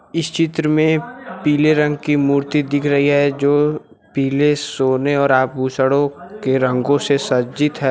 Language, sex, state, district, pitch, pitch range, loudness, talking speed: Hindi, male, Uttar Pradesh, Lucknow, 145 Hz, 135-150 Hz, -17 LUFS, 150 wpm